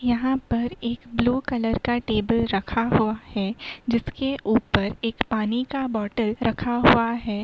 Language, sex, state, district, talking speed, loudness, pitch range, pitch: Hindi, female, Uttar Pradesh, Muzaffarnagar, 160 wpm, -24 LUFS, 220-245 Hz, 235 Hz